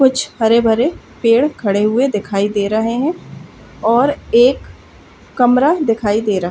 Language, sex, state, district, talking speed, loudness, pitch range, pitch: Hindi, female, Uttar Pradesh, Gorakhpur, 145 wpm, -15 LUFS, 210-260 Hz, 230 Hz